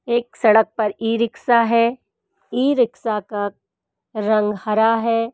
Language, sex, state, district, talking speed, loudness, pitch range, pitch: Hindi, female, Uttar Pradesh, Hamirpur, 110 wpm, -19 LUFS, 215-235 Hz, 225 Hz